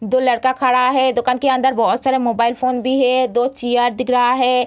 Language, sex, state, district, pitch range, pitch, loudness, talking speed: Hindi, female, Bihar, Begusarai, 245-260 Hz, 255 Hz, -16 LUFS, 230 wpm